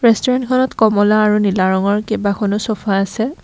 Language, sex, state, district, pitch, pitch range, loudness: Assamese, female, Assam, Kamrup Metropolitan, 210 Hz, 200-225 Hz, -15 LUFS